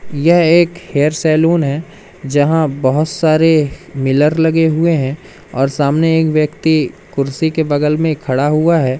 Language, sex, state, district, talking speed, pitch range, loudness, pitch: Hindi, male, Madhya Pradesh, Umaria, 155 wpm, 145-160 Hz, -14 LUFS, 155 Hz